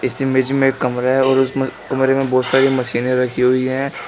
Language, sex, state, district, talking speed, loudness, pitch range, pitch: Hindi, male, Uttar Pradesh, Shamli, 235 wpm, -17 LUFS, 125-135 Hz, 130 Hz